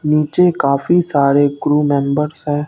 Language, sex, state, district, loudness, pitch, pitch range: Hindi, male, Bihar, Katihar, -15 LUFS, 145 Hz, 140-150 Hz